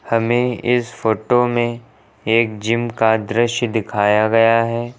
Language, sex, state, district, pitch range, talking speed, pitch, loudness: Hindi, male, Uttar Pradesh, Lucknow, 110-120 Hz, 130 wpm, 115 Hz, -17 LUFS